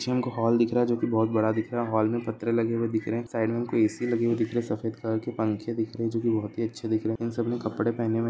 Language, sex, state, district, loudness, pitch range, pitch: Hindi, male, Andhra Pradesh, Krishna, -27 LUFS, 110-115 Hz, 115 Hz